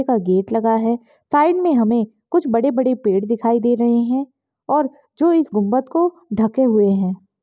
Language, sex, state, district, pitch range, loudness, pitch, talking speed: Hindi, female, Maharashtra, Solapur, 220-285 Hz, -18 LUFS, 240 Hz, 170 wpm